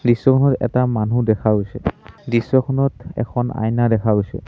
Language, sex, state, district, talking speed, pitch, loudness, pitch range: Assamese, male, Assam, Sonitpur, 135 wpm, 120 Hz, -19 LUFS, 110-125 Hz